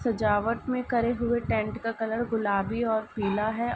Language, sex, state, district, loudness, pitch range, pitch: Hindi, female, Uttar Pradesh, Ghazipur, -28 LUFS, 215-235 Hz, 225 Hz